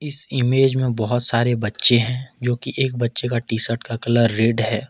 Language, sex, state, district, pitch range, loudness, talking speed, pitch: Hindi, male, Jharkhand, Ranchi, 115-130 Hz, -18 LUFS, 220 wpm, 120 Hz